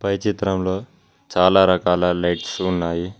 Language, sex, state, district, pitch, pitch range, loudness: Telugu, male, Telangana, Mahabubabad, 95 Hz, 90-100 Hz, -19 LUFS